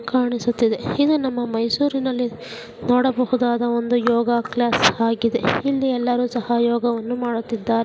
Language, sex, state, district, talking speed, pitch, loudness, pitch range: Kannada, female, Karnataka, Mysore, 115 wpm, 240 Hz, -20 LUFS, 235-250 Hz